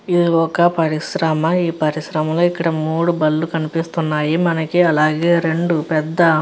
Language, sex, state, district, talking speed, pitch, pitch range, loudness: Telugu, female, Andhra Pradesh, Chittoor, 140 wpm, 165 Hz, 155-170 Hz, -17 LUFS